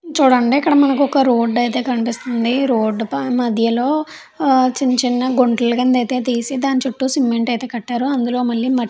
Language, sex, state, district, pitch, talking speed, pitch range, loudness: Telugu, female, Andhra Pradesh, Chittoor, 250 Hz, 140 wpm, 240-265 Hz, -17 LUFS